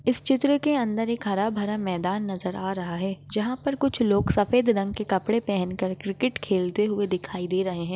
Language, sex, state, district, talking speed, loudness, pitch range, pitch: Hindi, female, Maharashtra, Chandrapur, 210 wpm, -25 LUFS, 185-230 Hz, 205 Hz